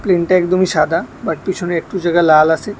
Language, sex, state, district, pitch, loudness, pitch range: Bengali, male, Tripura, West Tripura, 175 Hz, -15 LUFS, 165-185 Hz